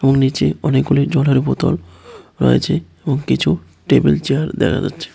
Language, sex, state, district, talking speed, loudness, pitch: Bengali, male, Tripura, West Tripura, 130 wpm, -17 LUFS, 130 Hz